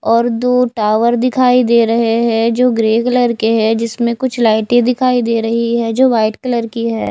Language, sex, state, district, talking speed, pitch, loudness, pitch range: Hindi, female, Odisha, Nuapada, 205 wpm, 235 Hz, -13 LUFS, 225-245 Hz